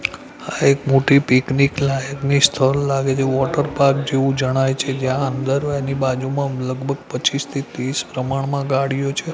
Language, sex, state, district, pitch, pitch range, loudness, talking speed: Gujarati, male, Gujarat, Gandhinagar, 135 Hz, 135-140 Hz, -19 LUFS, 140 wpm